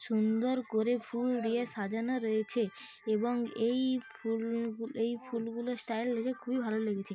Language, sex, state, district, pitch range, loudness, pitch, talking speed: Bengali, female, West Bengal, Dakshin Dinajpur, 225-245 Hz, -34 LUFS, 230 Hz, 150 wpm